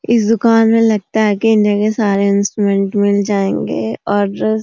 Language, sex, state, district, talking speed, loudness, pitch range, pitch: Hindi, female, Uttarakhand, Uttarkashi, 180 wpm, -14 LUFS, 200-220 Hz, 205 Hz